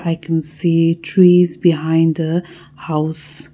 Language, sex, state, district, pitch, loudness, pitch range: English, female, Nagaland, Kohima, 165 Hz, -16 LUFS, 160-170 Hz